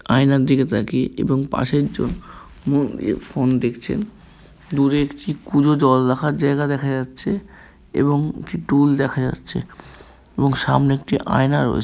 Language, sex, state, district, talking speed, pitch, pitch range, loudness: Bengali, male, West Bengal, Kolkata, 145 wpm, 140 Hz, 130-145 Hz, -20 LUFS